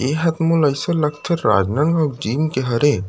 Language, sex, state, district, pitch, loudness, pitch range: Chhattisgarhi, male, Chhattisgarh, Rajnandgaon, 145 Hz, -18 LUFS, 130-160 Hz